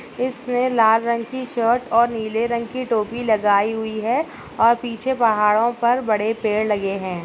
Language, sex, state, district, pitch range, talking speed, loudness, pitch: Hindi, female, Bihar, Saharsa, 215-240 Hz, 175 wpm, -20 LUFS, 230 Hz